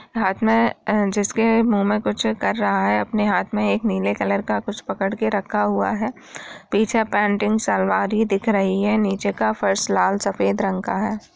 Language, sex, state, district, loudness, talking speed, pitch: Hindi, female, Bihar, Jamui, -20 LUFS, 200 wpm, 200 Hz